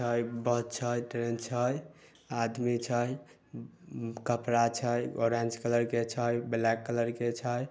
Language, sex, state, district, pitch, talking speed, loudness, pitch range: Maithili, male, Bihar, Samastipur, 120 Hz, 115 wpm, -32 LUFS, 115-120 Hz